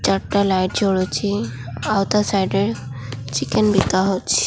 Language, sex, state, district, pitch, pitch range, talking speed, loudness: Odia, female, Odisha, Khordha, 185 Hz, 125-200 Hz, 135 wpm, -20 LUFS